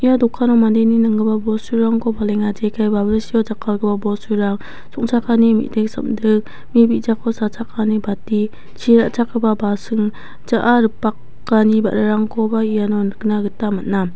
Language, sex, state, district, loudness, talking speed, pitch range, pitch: Garo, female, Meghalaya, West Garo Hills, -17 LUFS, 115 wpm, 210-230 Hz, 220 Hz